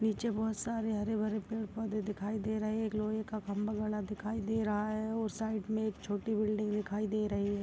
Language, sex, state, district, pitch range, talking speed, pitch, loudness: Hindi, female, Uttar Pradesh, Gorakhpur, 210-220 Hz, 210 wpm, 215 Hz, -35 LUFS